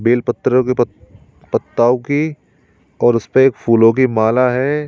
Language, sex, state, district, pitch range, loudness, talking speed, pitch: Hindi, male, Uttar Pradesh, Shamli, 120-130 Hz, -15 LUFS, 160 wpm, 125 Hz